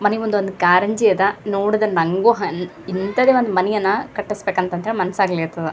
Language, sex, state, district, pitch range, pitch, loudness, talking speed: Kannada, female, Karnataka, Gulbarga, 185-210 Hz, 195 Hz, -18 LUFS, 155 wpm